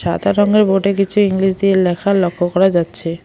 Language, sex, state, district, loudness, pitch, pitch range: Bengali, female, West Bengal, Alipurduar, -15 LUFS, 195 Hz, 175-200 Hz